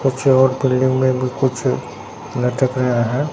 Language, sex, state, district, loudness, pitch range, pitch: Hindi, male, Bihar, Katihar, -18 LUFS, 125-130 Hz, 130 Hz